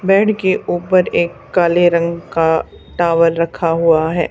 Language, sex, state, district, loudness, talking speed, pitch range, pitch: Hindi, female, Haryana, Charkhi Dadri, -15 LUFS, 155 wpm, 165-180 Hz, 170 Hz